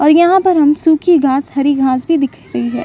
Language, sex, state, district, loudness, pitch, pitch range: Hindi, female, Bihar, Saran, -12 LUFS, 290 Hz, 265-325 Hz